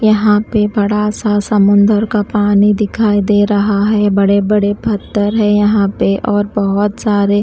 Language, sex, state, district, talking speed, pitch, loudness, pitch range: Hindi, female, Himachal Pradesh, Shimla, 160 wpm, 205 Hz, -13 LUFS, 205-210 Hz